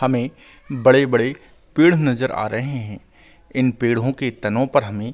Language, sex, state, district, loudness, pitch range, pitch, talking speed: Hindi, male, Chhattisgarh, Bastar, -19 LUFS, 120-135 Hz, 130 Hz, 185 wpm